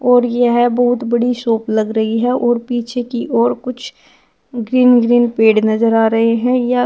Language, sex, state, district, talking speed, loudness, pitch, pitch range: Hindi, female, Uttar Pradesh, Shamli, 185 wpm, -14 LUFS, 240 Hz, 230-245 Hz